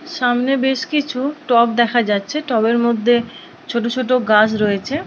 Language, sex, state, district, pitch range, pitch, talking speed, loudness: Bengali, female, West Bengal, Purulia, 230-270 Hz, 240 Hz, 140 wpm, -17 LUFS